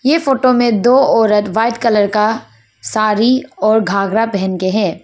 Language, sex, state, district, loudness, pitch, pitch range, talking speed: Hindi, female, Arunachal Pradesh, Papum Pare, -13 LUFS, 215 Hz, 200-240 Hz, 165 wpm